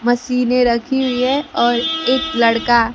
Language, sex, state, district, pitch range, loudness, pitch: Hindi, female, Bihar, Kaimur, 240-260 Hz, -16 LUFS, 245 Hz